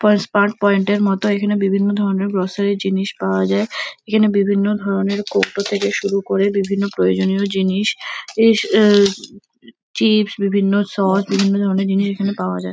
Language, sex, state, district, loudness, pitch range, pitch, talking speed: Bengali, female, West Bengal, Kolkata, -17 LUFS, 195-205 Hz, 200 Hz, 160 wpm